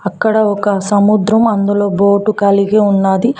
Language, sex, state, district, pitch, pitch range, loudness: Telugu, female, Telangana, Mahabubabad, 205 Hz, 200-215 Hz, -12 LUFS